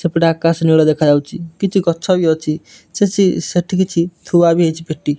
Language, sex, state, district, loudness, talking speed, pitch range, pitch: Odia, male, Odisha, Nuapada, -15 LUFS, 175 wpm, 160-180 Hz, 165 Hz